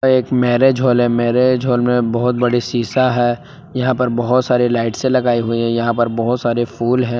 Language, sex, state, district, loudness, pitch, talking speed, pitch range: Hindi, male, Jharkhand, Palamu, -16 LUFS, 120 Hz, 210 wpm, 120-125 Hz